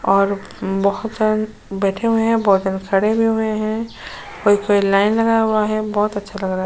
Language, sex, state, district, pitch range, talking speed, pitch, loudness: Hindi, female, Uttar Pradesh, Jyotiba Phule Nagar, 195-220 Hz, 190 wpm, 210 Hz, -18 LUFS